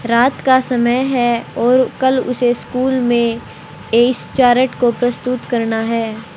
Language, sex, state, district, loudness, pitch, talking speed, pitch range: Hindi, male, Haryana, Rohtak, -15 LUFS, 245 Hz, 140 wpm, 235-255 Hz